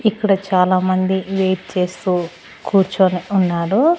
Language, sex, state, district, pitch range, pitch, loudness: Telugu, female, Andhra Pradesh, Annamaya, 180-195 Hz, 185 Hz, -17 LUFS